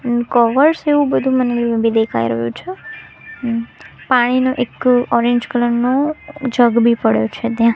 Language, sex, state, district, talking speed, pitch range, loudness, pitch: Gujarati, female, Gujarat, Gandhinagar, 145 wpm, 235-260 Hz, -16 LUFS, 240 Hz